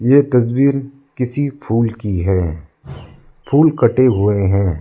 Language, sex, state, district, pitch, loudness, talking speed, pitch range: Hindi, male, Arunachal Pradesh, Lower Dibang Valley, 120 Hz, -16 LUFS, 125 wpm, 100-140 Hz